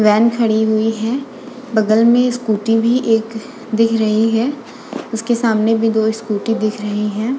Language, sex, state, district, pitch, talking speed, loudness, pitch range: Hindi, female, Uttar Pradesh, Budaun, 225 Hz, 165 wpm, -16 LUFS, 220-235 Hz